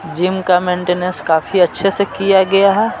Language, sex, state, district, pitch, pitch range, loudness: Hindi, male, Bihar, Patna, 185 Hz, 180-195 Hz, -14 LUFS